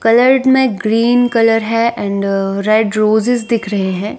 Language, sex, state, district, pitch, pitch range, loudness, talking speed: Hindi, female, Himachal Pradesh, Shimla, 225 Hz, 205-235 Hz, -13 LUFS, 160 wpm